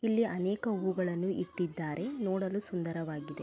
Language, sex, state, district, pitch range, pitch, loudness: Kannada, female, Karnataka, Mysore, 170-205 Hz, 190 Hz, -34 LUFS